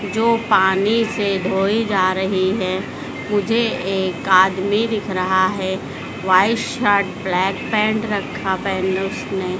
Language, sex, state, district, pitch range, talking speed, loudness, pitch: Hindi, female, Madhya Pradesh, Dhar, 185-210 Hz, 125 wpm, -19 LUFS, 195 Hz